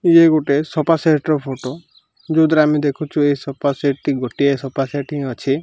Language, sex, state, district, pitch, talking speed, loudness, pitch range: Odia, male, Odisha, Malkangiri, 145 Hz, 190 wpm, -17 LUFS, 140-155 Hz